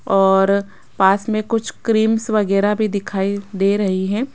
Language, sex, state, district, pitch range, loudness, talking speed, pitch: Hindi, female, Rajasthan, Jaipur, 195-215 Hz, -18 LUFS, 150 wpm, 200 Hz